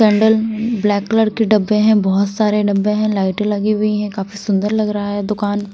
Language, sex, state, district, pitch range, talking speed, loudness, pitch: Hindi, female, Punjab, Kapurthala, 205-215 Hz, 210 wpm, -16 LUFS, 210 Hz